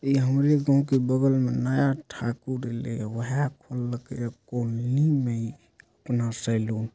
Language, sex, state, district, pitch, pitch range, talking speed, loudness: Angika, male, Bihar, Supaul, 125 Hz, 120-135 Hz, 85 wpm, -26 LUFS